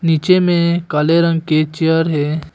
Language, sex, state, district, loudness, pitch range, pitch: Hindi, male, Arunachal Pradesh, Longding, -15 LUFS, 155-170 Hz, 165 Hz